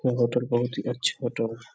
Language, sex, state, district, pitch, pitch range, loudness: Hindi, male, Bihar, Sitamarhi, 120 Hz, 120-125 Hz, -27 LUFS